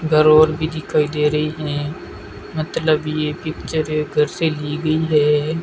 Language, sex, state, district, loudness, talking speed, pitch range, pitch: Hindi, male, Rajasthan, Bikaner, -19 LUFS, 170 wpm, 150-155 Hz, 155 Hz